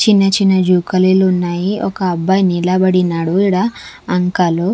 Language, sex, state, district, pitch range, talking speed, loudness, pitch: Telugu, female, Andhra Pradesh, Sri Satya Sai, 180-195 Hz, 115 wpm, -14 LUFS, 185 Hz